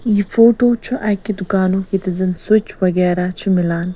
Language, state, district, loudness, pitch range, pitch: Kashmiri, Punjab, Kapurthala, -16 LUFS, 185-215 Hz, 195 Hz